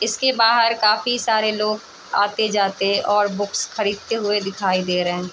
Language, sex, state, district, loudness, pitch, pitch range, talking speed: Hindi, female, Bihar, Gopalganj, -19 LUFS, 210 Hz, 200-220 Hz, 155 wpm